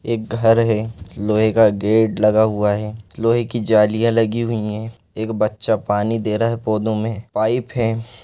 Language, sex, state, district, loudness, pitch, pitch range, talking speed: Hindi, male, Chhattisgarh, Balrampur, -18 LUFS, 110 Hz, 105-115 Hz, 180 wpm